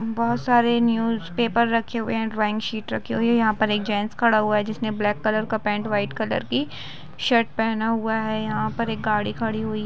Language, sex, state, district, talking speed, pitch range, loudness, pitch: Hindi, female, Jharkhand, Sahebganj, 215 wpm, 215-230 Hz, -23 LUFS, 220 Hz